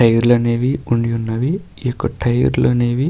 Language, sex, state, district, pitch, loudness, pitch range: Telugu, male, Karnataka, Bellary, 120 Hz, -17 LUFS, 115-125 Hz